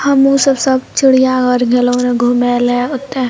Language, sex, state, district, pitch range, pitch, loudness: Maithili, female, Bihar, Purnia, 245-270 Hz, 255 Hz, -12 LUFS